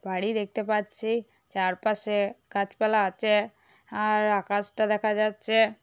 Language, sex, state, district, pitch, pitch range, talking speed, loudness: Bengali, female, West Bengal, North 24 Parganas, 215 Hz, 205-220 Hz, 105 wpm, -27 LUFS